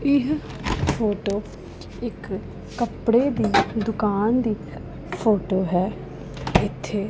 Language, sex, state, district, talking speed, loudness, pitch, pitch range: Punjabi, female, Punjab, Pathankot, 85 wpm, -24 LUFS, 215 Hz, 200-235 Hz